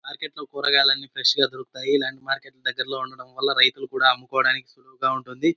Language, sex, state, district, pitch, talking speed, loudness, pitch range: Telugu, male, Andhra Pradesh, Anantapur, 135 Hz, 170 wpm, -22 LUFS, 130-140 Hz